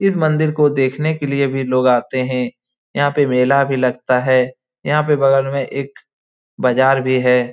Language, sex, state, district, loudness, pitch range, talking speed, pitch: Hindi, male, Bihar, Lakhisarai, -16 LUFS, 125-145 Hz, 190 wpm, 135 Hz